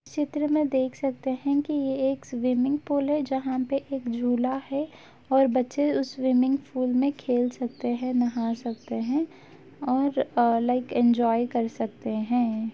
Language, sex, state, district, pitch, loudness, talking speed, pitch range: Hindi, female, Uttar Pradesh, Etah, 255 Hz, -26 LUFS, 165 wpm, 245-275 Hz